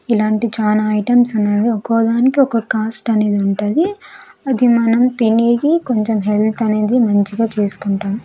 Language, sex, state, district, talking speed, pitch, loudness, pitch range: Telugu, female, Andhra Pradesh, Sri Satya Sai, 125 wpm, 225 Hz, -15 LUFS, 210-245 Hz